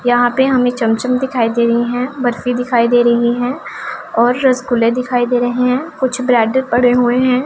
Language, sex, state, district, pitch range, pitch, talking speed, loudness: Hindi, female, Punjab, Pathankot, 240-255 Hz, 245 Hz, 195 wpm, -14 LUFS